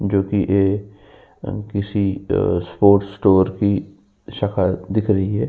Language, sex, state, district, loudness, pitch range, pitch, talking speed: Hindi, male, Uttar Pradesh, Jyotiba Phule Nagar, -19 LUFS, 95-100 Hz, 100 Hz, 110 wpm